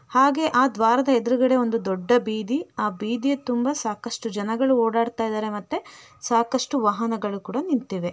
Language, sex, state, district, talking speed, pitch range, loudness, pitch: Kannada, female, Karnataka, Shimoga, 140 wpm, 220-265 Hz, -23 LUFS, 235 Hz